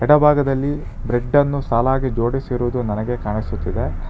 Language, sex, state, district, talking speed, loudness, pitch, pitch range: Kannada, male, Karnataka, Bangalore, 90 wpm, -19 LUFS, 120 Hz, 110-135 Hz